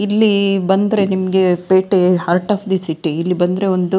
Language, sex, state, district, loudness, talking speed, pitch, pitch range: Kannada, female, Karnataka, Dakshina Kannada, -15 LUFS, 180 wpm, 190 Hz, 180-195 Hz